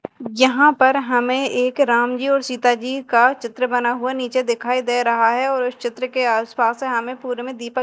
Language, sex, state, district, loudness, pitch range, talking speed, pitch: Hindi, female, Madhya Pradesh, Dhar, -19 LUFS, 240-260 Hz, 215 wpm, 250 Hz